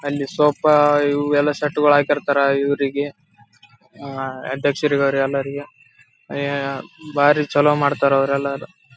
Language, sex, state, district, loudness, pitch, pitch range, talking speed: Kannada, male, Karnataka, Raichur, -19 LUFS, 140 Hz, 140-145 Hz, 95 wpm